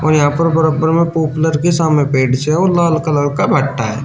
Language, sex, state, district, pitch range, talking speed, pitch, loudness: Hindi, male, Uttar Pradesh, Shamli, 145-165 Hz, 190 wpm, 155 Hz, -14 LUFS